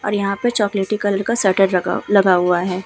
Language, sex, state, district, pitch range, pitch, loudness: Hindi, female, Uttar Pradesh, Hamirpur, 185-205 Hz, 195 Hz, -17 LUFS